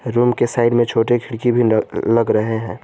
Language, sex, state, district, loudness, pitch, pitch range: Hindi, male, Jharkhand, Garhwa, -17 LUFS, 115 Hz, 115-120 Hz